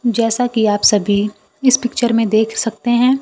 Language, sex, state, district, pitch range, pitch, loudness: Hindi, female, Bihar, Kaimur, 215-245 Hz, 230 Hz, -15 LUFS